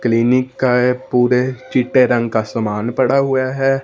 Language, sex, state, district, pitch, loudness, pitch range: Hindi, male, Punjab, Fazilka, 125 Hz, -16 LUFS, 120-130 Hz